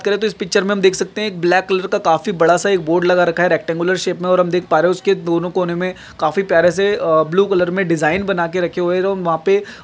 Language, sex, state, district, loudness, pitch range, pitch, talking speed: Hindi, male, Maharashtra, Nagpur, -16 LUFS, 170-195 Hz, 180 Hz, 325 wpm